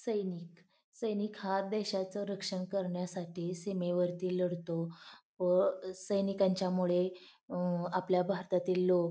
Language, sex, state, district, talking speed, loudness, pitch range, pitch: Marathi, female, Maharashtra, Pune, 90 wpm, -34 LUFS, 180-195 Hz, 185 Hz